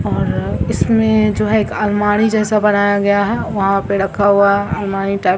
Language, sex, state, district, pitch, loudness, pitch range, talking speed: Hindi, female, Bihar, Samastipur, 205 Hz, -15 LUFS, 200-210 Hz, 210 wpm